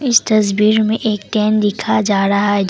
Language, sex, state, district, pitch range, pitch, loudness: Hindi, female, Assam, Kamrup Metropolitan, 205-220 Hz, 210 Hz, -15 LUFS